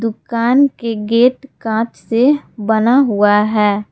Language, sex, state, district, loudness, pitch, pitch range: Hindi, female, Jharkhand, Palamu, -14 LUFS, 230 Hz, 210-250 Hz